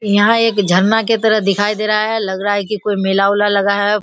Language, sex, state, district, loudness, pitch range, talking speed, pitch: Hindi, female, Bihar, Kishanganj, -14 LUFS, 200-215 Hz, 250 wpm, 205 Hz